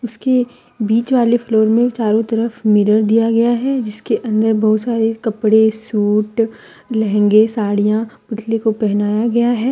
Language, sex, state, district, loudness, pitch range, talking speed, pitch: Hindi, female, Jharkhand, Deoghar, -16 LUFS, 215-235 Hz, 150 wpm, 225 Hz